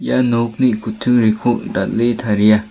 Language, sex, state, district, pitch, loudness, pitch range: Garo, male, Meghalaya, South Garo Hills, 115 Hz, -16 LUFS, 110-120 Hz